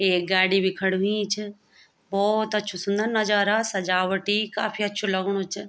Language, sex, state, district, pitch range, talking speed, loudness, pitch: Garhwali, female, Uttarakhand, Tehri Garhwal, 190-210 Hz, 160 wpm, -24 LUFS, 200 Hz